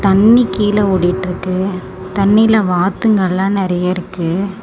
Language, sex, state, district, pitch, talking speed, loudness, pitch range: Tamil, female, Tamil Nadu, Namakkal, 190 Hz, 105 wpm, -14 LUFS, 185-205 Hz